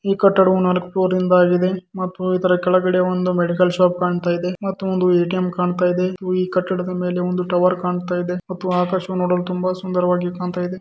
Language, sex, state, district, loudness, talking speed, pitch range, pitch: Kannada, male, Karnataka, Dharwad, -19 LUFS, 155 wpm, 180-185 Hz, 180 Hz